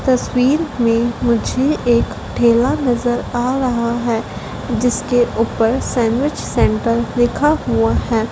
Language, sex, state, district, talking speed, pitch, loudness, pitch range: Hindi, female, Madhya Pradesh, Dhar, 115 wpm, 240 Hz, -17 LUFS, 230-255 Hz